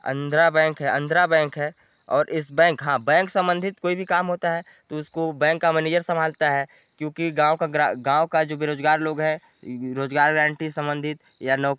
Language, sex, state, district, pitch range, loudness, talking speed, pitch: Hindi, male, Chhattisgarh, Sarguja, 150-165 Hz, -22 LUFS, 200 wpm, 155 Hz